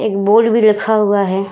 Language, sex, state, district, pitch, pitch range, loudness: Hindi, female, Uttar Pradesh, Budaun, 210 Hz, 200-220 Hz, -13 LUFS